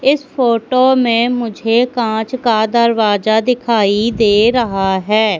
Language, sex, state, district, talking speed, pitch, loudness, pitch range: Hindi, female, Madhya Pradesh, Katni, 120 wpm, 230 Hz, -14 LUFS, 215-245 Hz